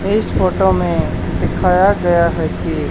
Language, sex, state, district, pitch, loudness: Hindi, male, Haryana, Charkhi Dadri, 165 Hz, -15 LUFS